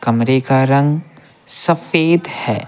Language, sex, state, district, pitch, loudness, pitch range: Hindi, male, Bihar, Patna, 145 Hz, -15 LUFS, 130-170 Hz